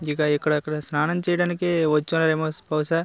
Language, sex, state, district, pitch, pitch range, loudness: Telugu, male, Andhra Pradesh, Visakhapatnam, 155 Hz, 150-170 Hz, -23 LUFS